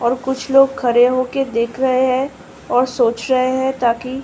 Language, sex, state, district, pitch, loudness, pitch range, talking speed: Hindi, female, Uttar Pradesh, Ghazipur, 255 Hz, -17 LUFS, 240-265 Hz, 210 wpm